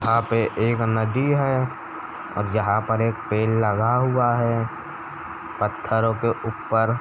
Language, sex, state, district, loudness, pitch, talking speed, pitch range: Hindi, male, Uttar Pradesh, Jalaun, -22 LUFS, 115 Hz, 145 wpm, 110-120 Hz